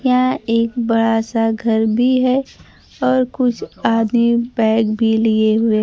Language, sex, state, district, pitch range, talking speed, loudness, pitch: Hindi, female, Bihar, Kaimur, 225-250 Hz, 145 wpm, -16 LUFS, 230 Hz